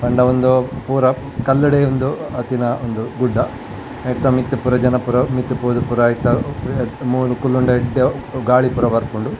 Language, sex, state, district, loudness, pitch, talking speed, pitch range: Tulu, male, Karnataka, Dakshina Kannada, -17 LUFS, 125 Hz, 155 wpm, 120-130 Hz